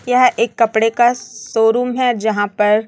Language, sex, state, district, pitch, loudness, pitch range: Hindi, female, Chhattisgarh, Raipur, 230 Hz, -15 LUFS, 220-245 Hz